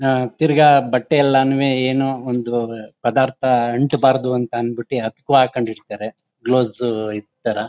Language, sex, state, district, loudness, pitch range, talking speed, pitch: Kannada, male, Karnataka, Mysore, -18 LUFS, 120-135 Hz, 115 wpm, 125 Hz